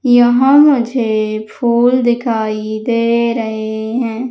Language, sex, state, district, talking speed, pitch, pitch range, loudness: Hindi, female, Madhya Pradesh, Umaria, 95 wpm, 235 Hz, 220-245 Hz, -14 LUFS